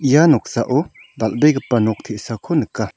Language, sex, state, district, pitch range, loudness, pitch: Garo, male, Meghalaya, South Garo Hills, 115-150 Hz, -18 LUFS, 135 Hz